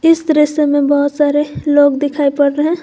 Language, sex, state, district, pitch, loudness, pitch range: Hindi, female, Jharkhand, Garhwa, 290 Hz, -13 LUFS, 285-300 Hz